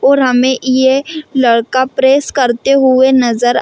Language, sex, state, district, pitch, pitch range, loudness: Hindi, female, Chhattisgarh, Rajnandgaon, 260 Hz, 250-270 Hz, -11 LUFS